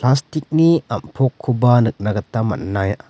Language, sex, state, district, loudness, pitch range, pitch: Garo, male, Meghalaya, West Garo Hills, -18 LUFS, 110-135 Hz, 125 Hz